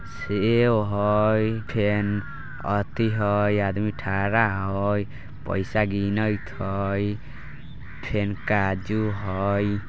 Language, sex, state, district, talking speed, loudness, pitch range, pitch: Bajjika, male, Bihar, Vaishali, 55 wpm, -24 LUFS, 100-110 Hz, 105 Hz